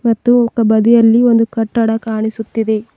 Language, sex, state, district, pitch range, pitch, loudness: Kannada, female, Karnataka, Bidar, 220-230 Hz, 225 Hz, -13 LUFS